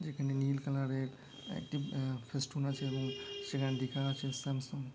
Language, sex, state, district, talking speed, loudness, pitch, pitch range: Bengali, male, West Bengal, Dakshin Dinajpur, 170 wpm, -38 LUFS, 135 Hz, 135-140 Hz